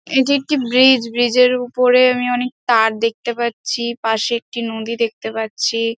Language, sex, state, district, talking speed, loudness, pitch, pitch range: Bengali, female, West Bengal, Dakshin Dinajpur, 180 wpm, -17 LUFS, 235 Hz, 230-250 Hz